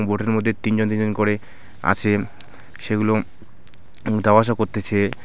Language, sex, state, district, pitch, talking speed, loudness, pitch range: Bengali, male, West Bengal, Alipurduar, 105 Hz, 115 wpm, -21 LUFS, 100-110 Hz